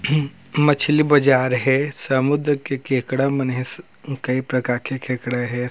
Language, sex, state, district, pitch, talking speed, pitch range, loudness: Chhattisgarhi, male, Chhattisgarh, Raigarh, 135 Hz, 145 wpm, 125-145 Hz, -20 LUFS